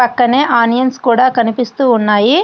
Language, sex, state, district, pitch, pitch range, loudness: Telugu, female, Andhra Pradesh, Srikakulam, 245 Hz, 235-255 Hz, -12 LUFS